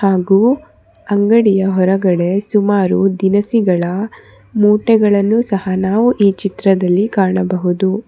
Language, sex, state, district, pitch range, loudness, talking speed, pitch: Kannada, female, Karnataka, Bangalore, 190-210 Hz, -14 LUFS, 80 wpm, 200 Hz